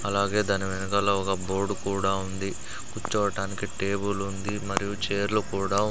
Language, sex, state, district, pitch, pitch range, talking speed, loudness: Telugu, male, Andhra Pradesh, Sri Satya Sai, 100 Hz, 95-100 Hz, 120 wpm, -28 LUFS